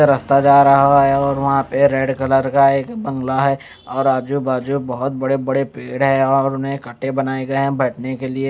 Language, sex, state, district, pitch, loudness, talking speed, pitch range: Hindi, male, Chandigarh, Chandigarh, 135 Hz, -17 LUFS, 205 wpm, 135-140 Hz